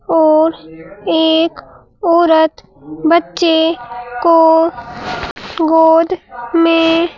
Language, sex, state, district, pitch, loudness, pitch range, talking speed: Hindi, female, Madhya Pradesh, Bhopal, 320 Hz, -13 LUFS, 240-330 Hz, 60 wpm